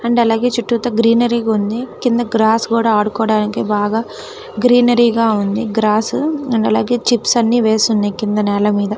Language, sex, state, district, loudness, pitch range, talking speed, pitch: Telugu, female, Telangana, Karimnagar, -15 LUFS, 215-240 Hz, 160 wpm, 230 Hz